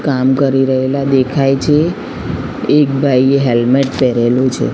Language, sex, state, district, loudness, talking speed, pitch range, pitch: Gujarati, female, Gujarat, Gandhinagar, -13 LUFS, 125 wpm, 130-140 Hz, 135 Hz